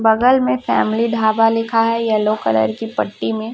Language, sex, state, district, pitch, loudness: Hindi, female, Chhattisgarh, Raipur, 220 Hz, -17 LUFS